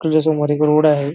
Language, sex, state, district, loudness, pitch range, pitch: Marathi, male, Maharashtra, Nagpur, -16 LUFS, 150-155 Hz, 150 Hz